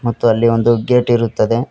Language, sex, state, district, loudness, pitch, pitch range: Kannada, male, Karnataka, Koppal, -14 LUFS, 120 Hz, 115-120 Hz